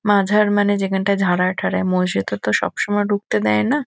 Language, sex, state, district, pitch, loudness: Bengali, female, West Bengal, Kolkata, 190 Hz, -18 LUFS